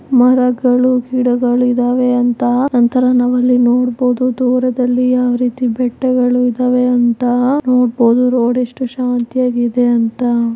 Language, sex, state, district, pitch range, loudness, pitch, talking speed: Kannada, female, Karnataka, Chamarajanagar, 245-250 Hz, -13 LUFS, 250 Hz, 95 wpm